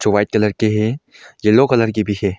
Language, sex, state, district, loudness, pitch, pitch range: Hindi, male, Arunachal Pradesh, Longding, -16 LUFS, 110 Hz, 105-110 Hz